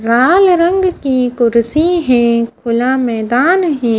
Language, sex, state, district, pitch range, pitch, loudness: Hindi, female, Haryana, Charkhi Dadri, 235-335 Hz, 250 Hz, -12 LUFS